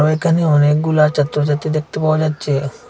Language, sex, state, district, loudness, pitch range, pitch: Bengali, male, Assam, Hailakandi, -16 LUFS, 150-155 Hz, 150 Hz